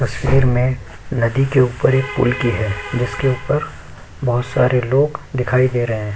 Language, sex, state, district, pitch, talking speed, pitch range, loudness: Hindi, male, Uttar Pradesh, Jyotiba Phule Nagar, 125 Hz, 185 wpm, 115-130 Hz, -18 LUFS